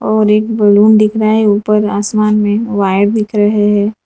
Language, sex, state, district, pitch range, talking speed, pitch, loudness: Hindi, female, Gujarat, Valsad, 205-215 Hz, 175 wpm, 210 Hz, -11 LUFS